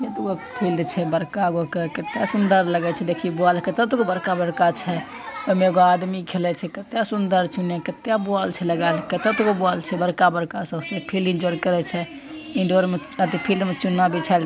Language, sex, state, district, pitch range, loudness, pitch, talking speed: Angika, male, Bihar, Begusarai, 175-195 Hz, -22 LUFS, 180 Hz, 120 wpm